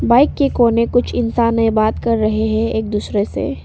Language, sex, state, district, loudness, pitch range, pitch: Hindi, female, Arunachal Pradesh, Papum Pare, -16 LUFS, 220-235 Hz, 230 Hz